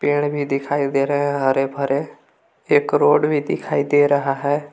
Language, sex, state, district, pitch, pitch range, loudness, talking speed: Hindi, male, Jharkhand, Palamu, 145 Hz, 140-145 Hz, -19 LUFS, 190 wpm